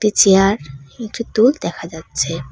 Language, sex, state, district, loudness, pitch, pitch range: Bengali, female, West Bengal, Cooch Behar, -16 LUFS, 195 Hz, 160-220 Hz